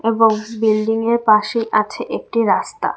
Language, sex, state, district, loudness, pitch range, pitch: Bengali, female, Tripura, West Tripura, -17 LUFS, 215-230 Hz, 225 Hz